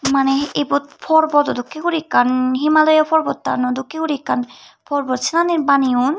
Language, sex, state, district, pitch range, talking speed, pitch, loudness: Chakma, female, Tripura, Unakoti, 265-315 Hz, 135 wpm, 285 Hz, -17 LUFS